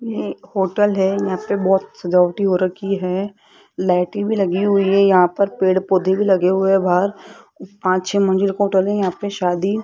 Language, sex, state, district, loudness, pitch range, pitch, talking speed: Hindi, female, Rajasthan, Jaipur, -18 LUFS, 185-200 Hz, 195 Hz, 205 wpm